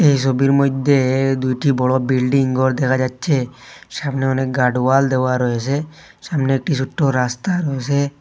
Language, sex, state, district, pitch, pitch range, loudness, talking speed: Bengali, male, Assam, Hailakandi, 135 Hz, 130-140 Hz, -18 LUFS, 140 wpm